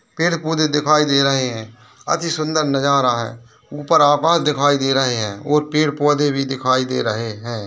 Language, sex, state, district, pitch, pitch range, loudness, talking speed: Hindi, male, Bihar, Bhagalpur, 140 Hz, 125-150 Hz, -17 LUFS, 190 wpm